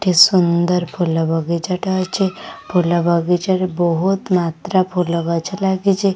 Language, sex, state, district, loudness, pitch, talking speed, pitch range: Odia, female, Odisha, Khordha, -17 LUFS, 180 Hz, 135 wpm, 170-190 Hz